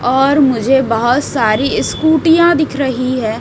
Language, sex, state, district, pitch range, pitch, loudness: Hindi, female, Haryana, Rohtak, 245-305 Hz, 270 Hz, -13 LUFS